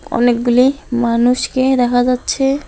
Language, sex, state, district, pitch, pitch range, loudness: Bengali, female, West Bengal, Alipurduar, 250 Hz, 245-265 Hz, -14 LUFS